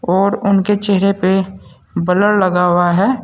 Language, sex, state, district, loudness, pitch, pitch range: Hindi, male, Uttar Pradesh, Saharanpur, -14 LUFS, 195 Hz, 180-200 Hz